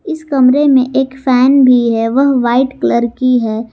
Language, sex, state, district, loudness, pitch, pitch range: Hindi, female, Jharkhand, Garhwa, -11 LUFS, 255 Hz, 240-270 Hz